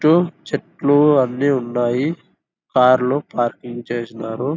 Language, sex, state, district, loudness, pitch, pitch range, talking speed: Telugu, male, Andhra Pradesh, Anantapur, -18 LUFS, 135 Hz, 120-145 Hz, 105 wpm